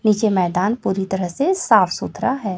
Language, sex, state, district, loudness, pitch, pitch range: Hindi, female, Chhattisgarh, Raipur, -19 LUFS, 195 Hz, 190-220 Hz